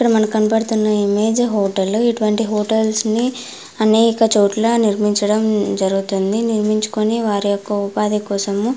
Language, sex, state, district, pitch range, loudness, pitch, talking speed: Telugu, female, Andhra Pradesh, Anantapur, 205-225 Hz, -17 LUFS, 215 Hz, 110 wpm